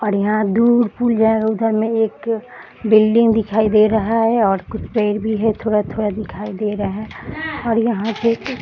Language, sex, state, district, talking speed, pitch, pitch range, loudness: Hindi, female, Bihar, Gaya, 175 wpm, 220 Hz, 210-230 Hz, -17 LUFS